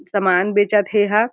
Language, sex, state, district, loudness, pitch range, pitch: Chhattisgarhi, female, Chhattisgarh, Jashpur, -17 LUFS, 200-210 Hz, 205 Hz